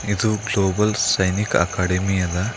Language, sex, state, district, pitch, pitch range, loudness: Kannada, male, Karnataka, Bidar, 95 Hz, 95-105 Hz, -20 LUFS